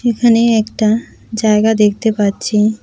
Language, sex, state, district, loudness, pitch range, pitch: Bengali, female, West Bengal, Cooch Behar, -14 LUFS, 210-230 Hz, 220 Hz